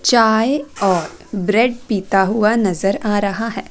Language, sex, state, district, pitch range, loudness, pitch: Hindi, female, Chandigarh, Chandigarh, 195-230 Hz, -17 LUFS, 210 Hz